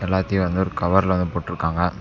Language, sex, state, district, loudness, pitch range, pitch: Tamil, male, Tamil Nadu, Namakkal, -21 LUFS, 90-95 Hz, 90 Hz